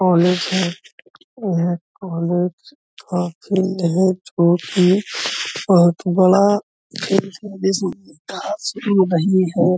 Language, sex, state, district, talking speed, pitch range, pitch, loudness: Hindi, male, Uttar Pradesh, Budaun, 75 wpm, 175-200 Hz, 185 Hz, -18 LUFS